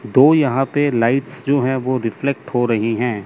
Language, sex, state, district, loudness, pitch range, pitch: Hindi, male, Chandigarh, Chandigarh, -17 LUFS, 115-140 Hz, 130 Hz